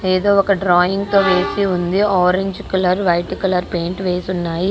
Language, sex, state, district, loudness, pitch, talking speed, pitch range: Telugu, female, Andhra Pradesh, Guntur, -17 LUFS, 185 Hz, 165 wpm, 180-195 Hz